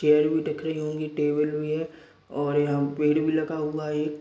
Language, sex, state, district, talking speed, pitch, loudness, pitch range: Hindi, male, Chhattisgarh, Raigarh, 200 wpm, 150 Hz, -26 LUFS, 150-155 Hz